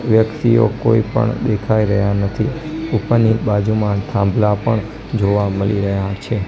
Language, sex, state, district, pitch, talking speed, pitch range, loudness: Gujarati, male, Gujarat, Gandhinagar, 110 Hz, 130 wpm, 100-115 Hz, -17 LUFS